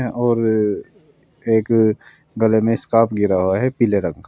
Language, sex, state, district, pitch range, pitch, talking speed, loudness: Hindi, male, Uttar Pradesh, Saharanpur, 105-120 Hz, 110 Hz, 155 wpm, -18 LUFS